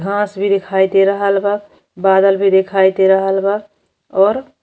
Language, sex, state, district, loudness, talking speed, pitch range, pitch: Bhojpuri, female, Uttar Pradesh, Deoria, -14 LUFS, 180 wpm, 190-200 Hz, 195 Hz